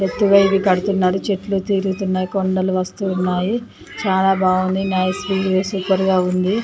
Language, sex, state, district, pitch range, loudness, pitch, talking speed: Telugu, female, Andhra Pradesh, Chittoor, 185-195 Hz, -18 LUFS, 190 Hz, 110 wpm